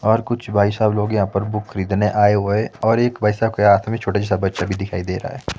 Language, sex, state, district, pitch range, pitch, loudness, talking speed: Hindi, male, Himachal Pradesh, Shimla, 100-110 Hz, 105 Hz, -19 LUFS, 245 wpm